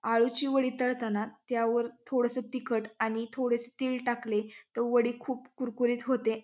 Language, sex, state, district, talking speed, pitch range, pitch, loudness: Marathi, female, Maharashtra, Pune, 140 wpm, 230-255 Hz, 240 Hz, -31 LUFS